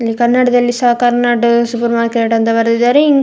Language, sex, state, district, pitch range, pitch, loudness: Kannada, female, Karnataka, Dakshina Kannada, 230-245 Hz, 240 Hz, -12 LUFS